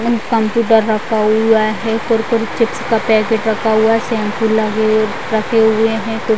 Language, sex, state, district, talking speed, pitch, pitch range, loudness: Hindi, female, Bihar, Vaishali, 150 wpm, 225 Hz, 220-225 Hz, -14 LUFS